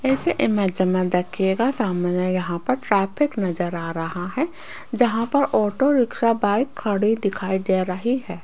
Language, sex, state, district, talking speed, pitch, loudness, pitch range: Hindi, female, Rajasthan, Jaipur, 155 wpm, 205 Hz, -22 LUFS, 185-250 Hz